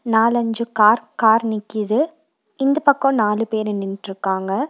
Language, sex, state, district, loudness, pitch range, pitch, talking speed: Tamil, female, Tamil Nadu, Nilgiris, -19 LUFS, 210-270 Hz, 225 Hz, 115 wpm